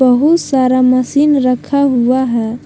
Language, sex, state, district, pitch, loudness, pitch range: Hindi, female, Jharkhand, Palamu, 255 Hz, -12 LUFS, 250-280 Hz